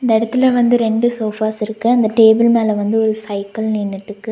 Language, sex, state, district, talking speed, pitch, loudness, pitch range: Tamil, female, Tamil Nadu, Nilgiris, 180 wpm, 220 Hz, -15 LUFS, 215-235 Hz